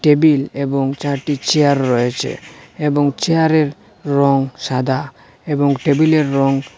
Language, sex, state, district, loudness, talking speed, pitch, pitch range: Bengali, male, Assam, Hailakandi, -16 LUFS, 105 wpm, 140 Hz, 135-150 Hz